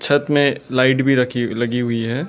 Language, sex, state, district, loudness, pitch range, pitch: Hindi, male, Arunachal Pradesh, Lower Dibang Valley, -18 LUFS, 120-140 Hz, 130 Hz